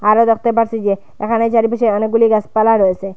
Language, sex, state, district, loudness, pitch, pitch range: Bengali, female, Assam, Hailakandi, -15 LUFS, 220 Hz, 210-230 Hz